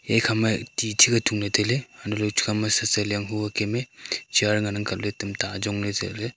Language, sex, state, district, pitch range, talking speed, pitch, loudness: Wancho, male, Arunachal Pradesh, Longding, 105-115 Hz, 160 wpm, 105 Hz, -24 LUFS